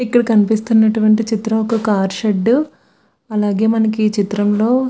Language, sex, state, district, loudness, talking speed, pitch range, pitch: Telugu, female, Andhra Pradesh, Visakhapatnam, -15 LUFS, 135 wpm, 210-225 Hz, 220 Hz